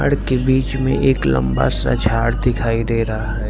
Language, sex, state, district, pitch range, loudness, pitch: Hindi, male, Gujarat, Valsad, 110-130 Hz, -18 LUFS, 115 Hz